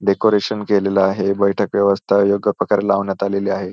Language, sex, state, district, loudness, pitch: Marathi, male, Maharashtra, Pune, -17 LUFS, 100 Hz